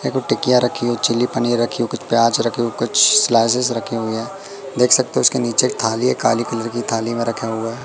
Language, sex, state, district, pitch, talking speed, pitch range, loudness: Hindi, male, Madhya Pradesh, Katni, 120 Hz, 260 wpm, 115-125 Hz, -17 LUFS